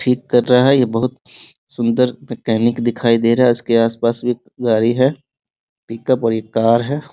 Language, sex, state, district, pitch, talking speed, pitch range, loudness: Hindi, male, Bihar, Muzaffarpur, 120 Hz, 195 wpm, 115-130 Hz, -16 LUFS